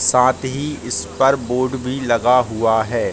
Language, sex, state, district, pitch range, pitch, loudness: Hindi, male, Bihar, Gaya, 120-130 Hz, 125 Hz, -18 LUFS